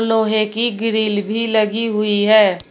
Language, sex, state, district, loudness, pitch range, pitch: Hindi, female, Uttar Pradesh, Shamli, -16 LUFS, 210-225 Hz, 220 Hz